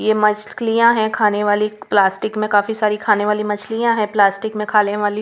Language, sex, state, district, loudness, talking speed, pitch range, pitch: Hindi, female, Punjab, Pathankot, -17 LUFS, 195 wpm, 210-220 Hz, 210 Hz